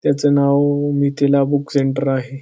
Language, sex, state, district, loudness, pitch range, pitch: Marathi, male, Maharashtra, Pune, -17 LUFS, 135-145 Hz, 140 Hz